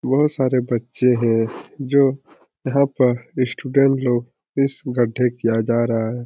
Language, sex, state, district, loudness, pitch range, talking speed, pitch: Hindi, male, Bihar, Supaul, -19 LUFS, 120-135 Hz, 145 wpm, 125 Hz